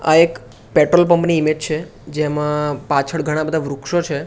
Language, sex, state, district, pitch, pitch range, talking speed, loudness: Gujarati, male, Gujarat, Gandhinagar, 155 Hz, 145-160 Hz, 170 wpm, -17 LUFS